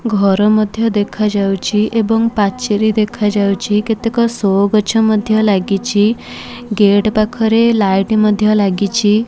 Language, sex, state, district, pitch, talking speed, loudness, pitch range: Odia, female, Odisha, Malkangiri, 215 Hz, 115 wpm, -14 LUFS, 205-220 Hz